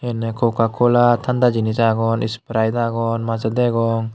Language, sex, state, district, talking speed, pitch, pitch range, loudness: Chakma, male, Tripura, Unakoti, 130 wpm, 115 Hz, 115-120 Hz, -18 LUFS